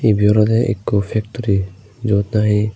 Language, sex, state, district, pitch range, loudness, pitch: Chakma, male, Tripura, Unakoti, 100-110 Hz, -17 LUFS, 105 Hz